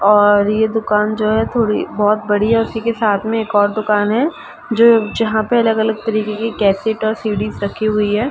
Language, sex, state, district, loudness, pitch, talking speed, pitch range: Hindi, female, Uttar Pradesh, Ghazipur, -16 LUFS, 215 Hz, 210 wpm, 210-225 Hz